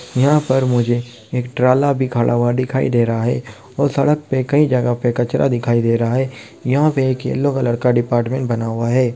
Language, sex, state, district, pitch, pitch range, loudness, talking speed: Hindi, male, Bihar, Kishanganj, 125 Hz, 120-130 Hz, -17 LUFS, 205 wpm